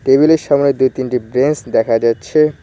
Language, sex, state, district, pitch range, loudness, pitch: Bengali, male, West Bengal, Cooch Behar, 115-145 Hz, -14 LUFS, 130 Hz